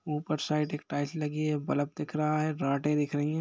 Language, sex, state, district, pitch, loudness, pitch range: Hindi, male, Jharkhand, Jamtara, 150 Hz, -31 LUFS, 145-155 Hz